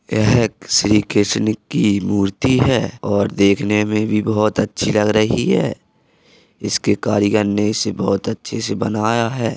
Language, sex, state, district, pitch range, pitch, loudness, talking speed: Hindi, male, Uttar Pradesh, Jalaun, 100-110 Hz, 105 Hz, -17 LUFS, 165 wpm